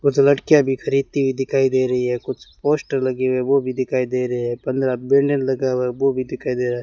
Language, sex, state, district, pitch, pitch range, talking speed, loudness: Hindi, male, Rajasthan, Bikaner, 130 Hz, 125-135 Hz, 245 wpm, -20 LUFS